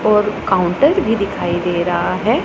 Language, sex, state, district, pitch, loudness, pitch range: Hindi, female, Punjab, Pathankot, 185 Hz, -16 LUFS, 175-210 Hz